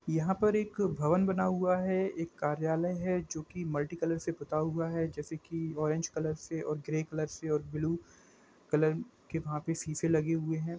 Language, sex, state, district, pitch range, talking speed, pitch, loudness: Hindi, male, Jharkhand, Jamtara, 155-170 Hz, 200 wpm, 160 Hz, -33 LUFS